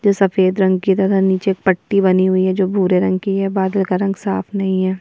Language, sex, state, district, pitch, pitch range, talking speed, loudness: Hindi, female, Bihar, Kishanganj, 190 Hz, 185-195 Hz, 265 wpm, -16 LUFS